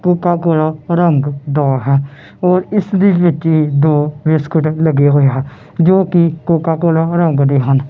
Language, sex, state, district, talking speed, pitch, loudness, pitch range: Punjabi, male, Punjab, Kapurthala, 160 wpm, 155 Hz, -13 LUFS, 145-170 Hz